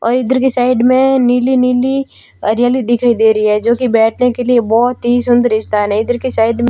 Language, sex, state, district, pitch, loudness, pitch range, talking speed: Hindi, female, Rajasthan, Barmer, 245 Hz, -12 LUFS, 230-250 Hz, 235 wpm